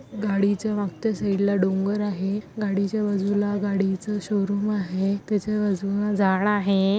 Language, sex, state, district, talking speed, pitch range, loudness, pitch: Marathi, female, Maharashtra, Solapur, 110 wpm, 195-210 Hz, -24 LUFS, 200 Hz